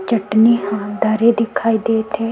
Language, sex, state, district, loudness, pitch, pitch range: Chhattisgarhi, female, Chhattisgarh, Sukma, -16 LUFS, 225 Hz, 215-230 Hz